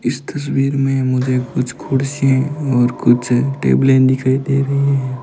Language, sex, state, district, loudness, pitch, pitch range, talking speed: Hindi, male, Rajasthan, Bikaner, -16 LUFS, 130 Hz, 125-135 Hz, 150 wpm